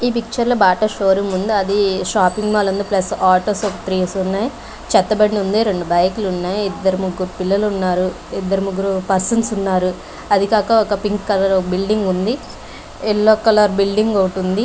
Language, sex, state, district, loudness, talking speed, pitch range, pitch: Telugu, female, Andhra Pradesh, Visakhapatnam, -17 LUFS, 170 wpm, 190-210 Hz, 200 Hz